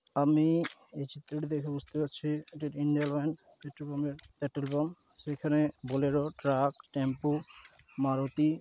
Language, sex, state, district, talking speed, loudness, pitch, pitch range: Bengali, male, West Bengal, Dakshin Dinajpur, 140 wpm, -32 LUFS, 145 Hz, 140-150 Hz